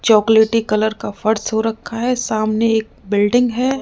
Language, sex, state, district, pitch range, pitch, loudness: Hindi, female, Rajasthan, Jaipur, 215-235 Hz, 220 Hz, -17 LUFS